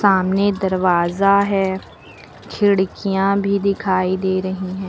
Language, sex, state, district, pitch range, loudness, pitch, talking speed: Hindi, female, Uttar Pradesh, Lucknow, 185-200 Hz, -18 LUFS, 190 Hz, 110 wpm